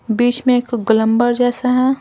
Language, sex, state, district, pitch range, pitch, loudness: Hindi, female, Bihar, Patna, 235-250 Hz, 245 Hz, -15 LUFS